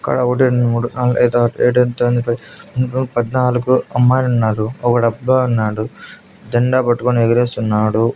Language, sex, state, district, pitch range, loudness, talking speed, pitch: Telugu, male, Andhra Pradesh, Annamaya, 115-125 Hz, -16 LUFS, 130 wpm, 120 Hz